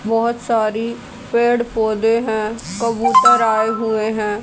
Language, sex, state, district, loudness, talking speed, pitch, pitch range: Hindi, female, Haryana, Jhajjar, -17 LUFS, 120 wpm, 225 Hz, 220-235 Hz